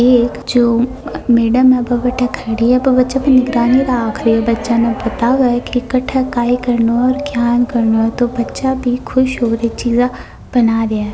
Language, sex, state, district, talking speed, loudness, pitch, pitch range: Hindi, female, Rajasthan, Nagaur, 165 wpm, -14 LUFS, 245 Hz, 235-255 Hz